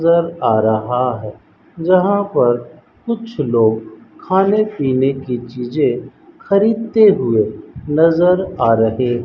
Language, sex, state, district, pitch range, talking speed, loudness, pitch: Hindi, male, Rajasthan, Bikaner, 120-185 Hz, 110 wpm, -16 LUFS, 135 Hz